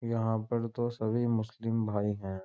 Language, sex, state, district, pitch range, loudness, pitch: Hindi, male, Uttar Pradesh, Jyotiba Phule Nagar, 110-115 Hz, -32 LUFS, 115 Hz